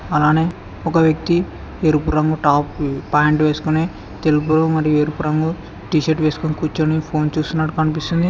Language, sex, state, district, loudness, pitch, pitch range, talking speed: Telugu, male, Telangana, Hyderabad, -18 LUFS, 155 Hz, 150-160 Hz, 135 wpm